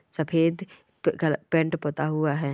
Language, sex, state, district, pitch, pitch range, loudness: Hindi, female, Bihar, Gopalganj, 160 Hz, 155-165 Hz, -26 LUFS